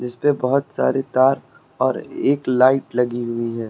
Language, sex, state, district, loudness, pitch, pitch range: Hindi, male, Uttar Pradesh, Lucknow, -20 LUFS, 130 Hz, 120-135 Hz